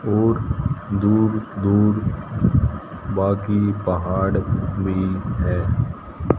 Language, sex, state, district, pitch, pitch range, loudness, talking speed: Hindi, male, Haryana, Jhajjar, 100 Hz, 95-105 Hz, -21 LUFS, 65 wpm